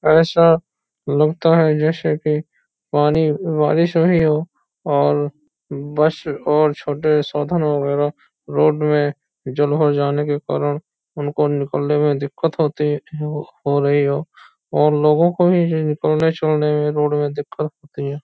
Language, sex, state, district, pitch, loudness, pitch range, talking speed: Hindi, male, Uttar Pradesh, Hamirpur, 150 Hz, -18 LUFS, 145-155 Hz, 140 wpm